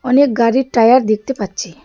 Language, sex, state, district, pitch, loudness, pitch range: Bengali, female, West Bengal, Darjeeling, 235 Hz, -14 LUFS, 215-260 Hz